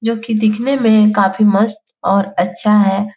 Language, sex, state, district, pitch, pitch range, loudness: Hindi, female, Bihar, Jahanabad, 210 Hz, 200-225 Hz, -14 LUFS